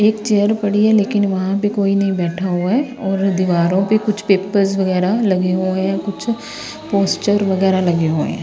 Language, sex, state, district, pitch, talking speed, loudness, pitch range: Hindi, female, Himachal Pradesh, Shimla, 195 Hz, 190 wpm, -17 LUFS, 185-210 Hz